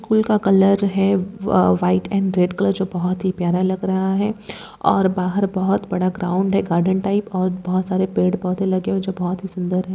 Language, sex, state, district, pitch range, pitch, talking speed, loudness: Hindi, female, Chhattisgarh, Bilaspur, 185-195 Hz, 190 Hz, 235 wpm, -19 LUFS